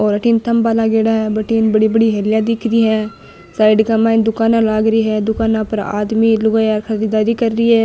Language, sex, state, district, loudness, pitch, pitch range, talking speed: Marwari, female, Rajasthan, Nagaur, -14 LUFS, 220 Hz, 215-225 Hz, 205 wpm